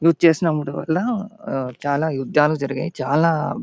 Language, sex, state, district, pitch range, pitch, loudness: Telugu, male, Andhra Pradesh, Anantapur, 140-165 Hz, 155 Hz, -21 LUFS